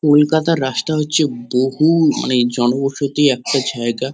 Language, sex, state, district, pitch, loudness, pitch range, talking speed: Bengali, male, West Bengal, Kolkata, 140 Hz, -16 LUFS, 125-155 Hz, 130 wpm